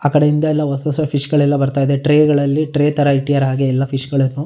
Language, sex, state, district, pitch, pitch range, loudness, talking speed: Kannada, male, Karnataka, Shimoga, 145 Hz, 140-150 Hz, -15 LUFS, 240 wpm